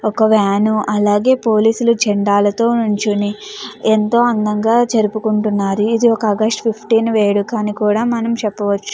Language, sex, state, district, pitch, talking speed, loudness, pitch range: Telugu, female, Andhra Pradesh, Guntur, 215 Hz, 130 wpm, -15 LUFS, 210-230 Hz